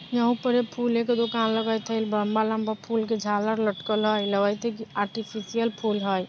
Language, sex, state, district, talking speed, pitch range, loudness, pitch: Bajjika, female, Bihar, Vaishali, 180 wpm, 210-230 Hz, -26 LUFS, 220 Hz